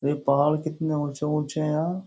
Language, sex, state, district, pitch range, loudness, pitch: Hindi, male, Uttar Pradesh, Jyotiba Phule Nagar, 145-155 Hz, -25 LUFS, 150 Hz